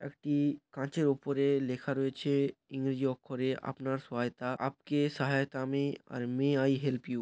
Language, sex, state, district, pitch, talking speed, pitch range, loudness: Bengali, male, West Bengal, Paschim Medinipur, 135 Hz, 140 wpm, 130-140 Hz, -33 LUFS